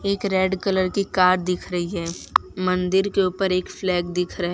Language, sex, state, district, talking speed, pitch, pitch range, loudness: Hindi, female, Gujarat, Valsad, 210 wpm, 185 Hz, 180-195 Hz, -22 LUFS